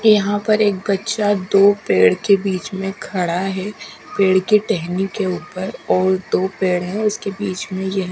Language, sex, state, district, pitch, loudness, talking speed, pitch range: Hindi, female, Bihar, Katihar, 195 Hz, -18 LUFS, 175 wpm, 185-205 Hz